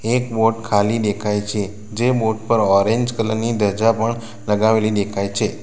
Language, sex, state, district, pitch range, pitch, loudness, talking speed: Gujarati, male, Gujarat, Valsad, 105-115 Hz, 110 Hz, -19 LUFS, 170 wpm